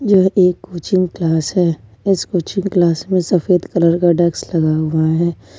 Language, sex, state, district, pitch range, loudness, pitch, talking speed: Hindi, female, Jharkhand, Ranchi, 160-185 Hz, -16 LUFS, 175 Hz, 170 wpm